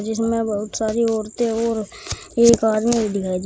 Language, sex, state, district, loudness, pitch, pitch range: Hindi, female, Uttar Pradesh, Shamli, -20 LUFS, 220 Hz, 215-230 Hz